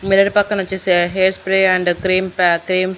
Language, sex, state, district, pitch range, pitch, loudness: Telugu, female, Andhra Pradesh, Annamaya, 185-190 Hz, 185 Hz, -15 LUFS